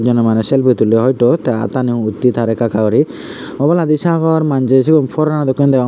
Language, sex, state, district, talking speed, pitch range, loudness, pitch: Chakma, male, Tripura, Unakoti, 195 wpm, 115-150 Hz, -13 LUFS, 130 Hz